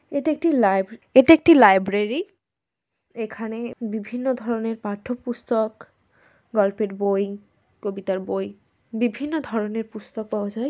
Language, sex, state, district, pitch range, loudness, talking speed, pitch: Bengali, female, West Bengal, North 24 Parganas, 205-245 Hz, -22 LUFS, 110 wpm, 225 Hz